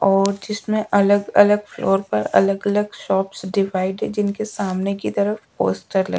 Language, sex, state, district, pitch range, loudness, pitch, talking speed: Hindi, female, Bihar, Patna, 195-205 Hz, -20 LUFS, 200 Hz, 155 wpm